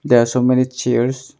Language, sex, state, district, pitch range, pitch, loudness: English, male, Arunachal Pradesh, Longding, 120-130 Hz, 125 Hz, -17 LUFS